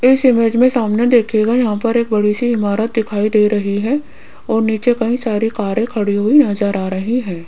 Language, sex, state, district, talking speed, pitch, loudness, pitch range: Hindi, female, Rajasthan, Jaipur, 210 wpm, 225 Hz, -15 LUFS, 210-240 Hz